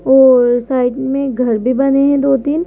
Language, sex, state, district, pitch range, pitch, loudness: Hindi, female, Madhya Pradesh, Bhopal, 250-275 Hz, 265 Hz, -13 LUFS